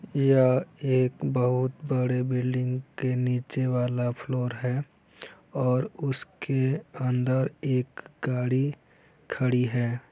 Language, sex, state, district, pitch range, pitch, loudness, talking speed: Hindi, male, Bihar, Araria, 125-135 Hz, 130 Hz, -27 LUFS, 105 wpm